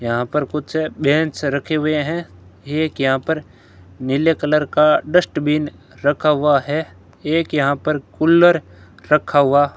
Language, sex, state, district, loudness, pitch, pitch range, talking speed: Hindi, male, Rajasthan, Bikaner, -18 LUFS, 150 Hz, 140-155 Hz, 145 wpm